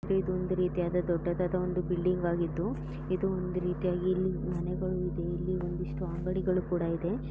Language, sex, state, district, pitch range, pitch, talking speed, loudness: Kannada, female, Karnataka, Dakshina Kannada, 175-185 Hz, 180 Hz, 170 wpm, -32 LUFS